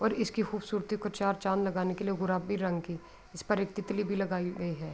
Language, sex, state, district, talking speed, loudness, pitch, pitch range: Urdu, female, Andhra Pradesh, Anantapur, 220 wpm, -33 LUFS, 195 Hz, 185-205 Hz